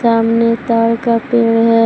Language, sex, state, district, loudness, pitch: Hindi, female, Jharkhand, Palamu, -13 LUFS, 230 Hz